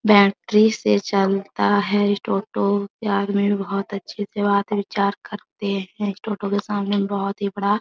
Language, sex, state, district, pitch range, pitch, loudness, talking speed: Hindi, female, Bihar, Araria, 200-205 Hz, 200 Hz, -21 LUFS, 160 wpm